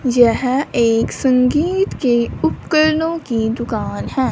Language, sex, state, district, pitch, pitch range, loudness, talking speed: Hindi, female, Punjab, Fazilka, 255 Hz, 235-310 Hz, -17 LUFS, 110 wpm